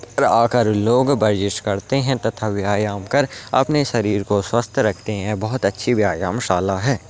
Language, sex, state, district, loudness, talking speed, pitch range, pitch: Hindi, male, Uttarakhand, Tehri Garhwal, -19 LUFS, 170 wpm, 100-125 Hz, 110 Hz